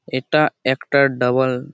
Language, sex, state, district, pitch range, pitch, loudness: Bengali, male, West Bengal, Malda, 130-140 Hz, 130 Hz, -18 LUFS